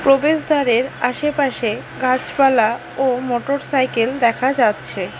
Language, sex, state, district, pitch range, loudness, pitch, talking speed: Bengali, female, West Bengal, Alipurduar, 245-280 Hz, -18 LUFS, 260 Hz, 80 wpm